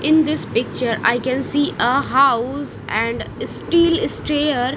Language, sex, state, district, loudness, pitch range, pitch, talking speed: English, female, Punjab, Kapurthala, -19 LUFS, 260-305 Hz, 285 Hz, 140 wpm